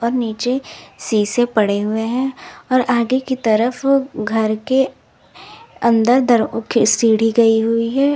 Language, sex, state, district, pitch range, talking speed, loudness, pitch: Hindi, female, Uttar Pradesh, Lalitpur, 225-260 Hz, 115 wpm, -17 LUFS, 235 Hz